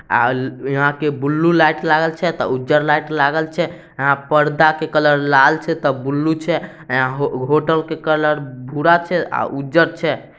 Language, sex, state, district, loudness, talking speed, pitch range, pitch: Maithili, male, Bihar, Samastipur, -17 LUFS, 155 wpm, 140-160 Hz, 150 Hz